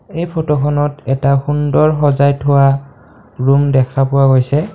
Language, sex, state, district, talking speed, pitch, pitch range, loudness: Assamese, male, Assam, Kamrup Metropolitan, 125 wpm, 140 Hz, 135-145 Hz, -13 LUFS